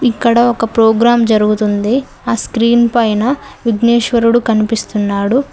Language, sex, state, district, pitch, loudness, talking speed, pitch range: Telugu, female, Telangana, Mahabubabad, 230 Hz, -13 LUFS, 95 wpm, 215-240 Hz